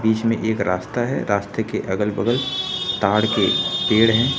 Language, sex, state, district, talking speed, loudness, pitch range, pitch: Hindi, male, Uttar Pradesh, Lucknow, 180 wpm, -20 LUFS, 100-115 Hz, 110 Hz